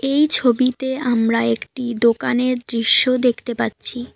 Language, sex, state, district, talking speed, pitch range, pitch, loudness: Bengali, female, West Bengal, Alipurduar, 115 wpm, 235-255 Hz, 245 Hz, -17 LUFS